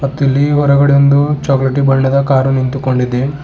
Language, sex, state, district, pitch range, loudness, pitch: Kannada, male, Karnataka, Bidar, 135-140 Hz, -12 LUFS, 140 Hz